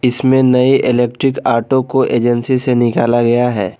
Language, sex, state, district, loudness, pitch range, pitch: Hindi, male, Jharkhand, Garhwa, -13 LUFS, 120-130 Hz, 125 Hz